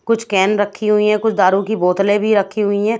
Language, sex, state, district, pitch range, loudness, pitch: Hindi, female, Odisha, Khordha, 200-215 Hz, -15 LUFS, 210 Hz